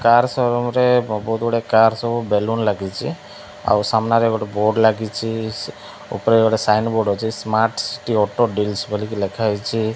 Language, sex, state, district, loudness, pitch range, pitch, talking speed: Odia, male, Odisha, Malkangiri, -19 LUFS, 105-115 Hz, 110 Hz, 145 wpm